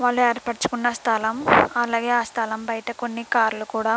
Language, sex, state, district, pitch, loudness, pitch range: Telugu, female, Andhra Pradesh, Krishna, 235 Hz, -22 LUFS, 225-240 Hz